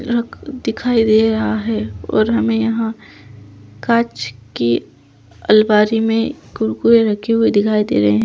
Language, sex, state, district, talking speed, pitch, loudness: Hindi, female, Chhattisgarh, Bastar, 140 wpm, 215 Hz, -16 LUFS